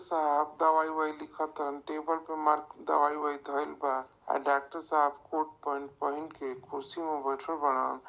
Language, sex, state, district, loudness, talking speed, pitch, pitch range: Bhojpuri, male, Uttar Pradesh, Varanasi, -32 LUFS, 155 wpm, 150 Hz, 145-155 Hz